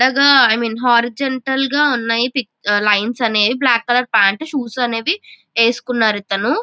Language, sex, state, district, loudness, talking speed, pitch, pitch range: Telugu, female, Andhra Pradesh, Chittoor, -15 LUFS, 145 wpm, 245 Hz, 225-265 Hz